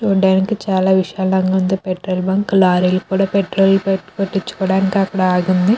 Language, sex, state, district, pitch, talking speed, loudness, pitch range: Telugu, female, Andhra Pradesh, Krishna, 190 Hz, 135 wpm, -16 LUFS, 185-195 Hz